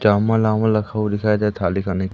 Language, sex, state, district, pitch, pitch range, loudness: Hindi, male, Madhya Pradesh, Umaria, 105 Hz, 100-110 Hz, -19 LUFS